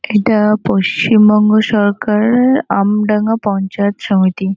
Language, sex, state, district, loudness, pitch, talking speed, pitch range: Bengali, female, West Bengal, North 24 Parganas, -13 LUFS, 210 Hz, 80 wpm, 200-220 Hz